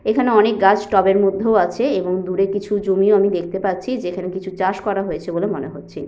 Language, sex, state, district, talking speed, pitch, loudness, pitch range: Bengali, female, West Bengal, Jhargram, 205 wpm, 195 Hz, -18 LUFS, 190-205 Hz